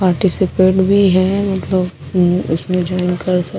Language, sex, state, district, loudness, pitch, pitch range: Hindi, female, Odisha, Sambalpur, -15 LUFS, 185 Hz, 180-190 Hz